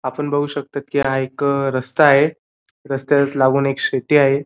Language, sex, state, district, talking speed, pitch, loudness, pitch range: Marathi, male, Maharashtra, Dhule, 175 wpm, 140 Hz, -18 LUFS, 135-145 Hz